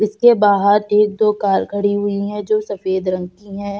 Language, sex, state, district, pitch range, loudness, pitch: Hindi, female, Uttar Pradesh, Jalaun, 200-210 Hz, -16 LUFS, 205 Hz